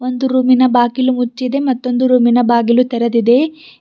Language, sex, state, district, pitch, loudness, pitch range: Kannada, female, Karnataka, Bidar, 250 Hz, -13 LUFS, 240-255 Hz